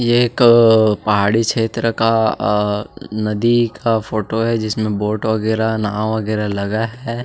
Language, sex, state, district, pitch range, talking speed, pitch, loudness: Hindi, male, Chhattisgarh, Jashpur, 105-115 Hz, 140 wpm, 110 Hz, -16 LUFS